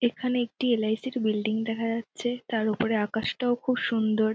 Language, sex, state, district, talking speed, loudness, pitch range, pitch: Bengali, female, West Bengal, Dakshin Dinajpur, 165 wpm, -27 LUFS, 220-245 Hz, 225 Hz